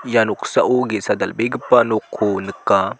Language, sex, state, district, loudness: Garo, male, Meghalaya, South Garo Hills, -18 LUFS